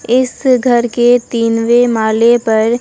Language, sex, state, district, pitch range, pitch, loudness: Hindi, female, Bihar, Katihar, 230-245 Hz, 240 Hz, -12 LUFS